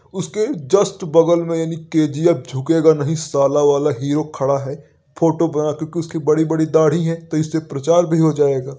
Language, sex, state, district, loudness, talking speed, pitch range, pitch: Hindi, male, Uttar Pradesh, Varanasi, -17 LUFS, 185 wpm, 145-165 Hz, 160 Hz